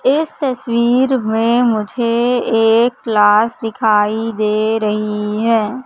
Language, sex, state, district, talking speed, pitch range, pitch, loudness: Hindi, female, Madhya Pradesh, Katni, 105 wpm, 215-240 Hz, 225 Hz, -15 LUFS